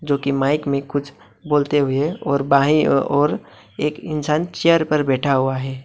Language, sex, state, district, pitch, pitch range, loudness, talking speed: Hindi, male, West Bengal, Alipurduar, 145 Hz, 140-150 Hz, -19 LUFS, 175 wpm